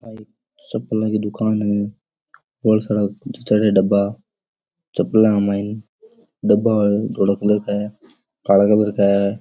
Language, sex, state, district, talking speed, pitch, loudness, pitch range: Rajasthani, male, Rajasthan, Nagaur, 135 wpm, 105 Hz, -18 LUFS, 100-115 Hz